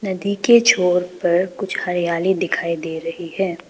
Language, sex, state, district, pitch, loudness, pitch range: Hindi, female, Arunachal Pradesh, Papum Pare, 180 Hz, -19 LUFS, 170-190 Hz